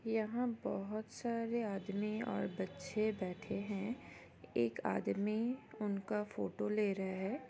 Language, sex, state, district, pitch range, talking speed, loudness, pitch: Hindi, female, Bihar, East Champaran, 195-225 Hz, 120 wpm, -40 LUFS, 210 Hz